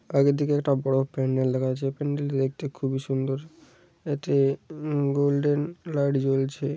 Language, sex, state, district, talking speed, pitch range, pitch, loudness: Bengali, male, West Bengal, Paschim Medinipur, 140 wpm, 135-145 Hz, 140 Hz, -26 LUFS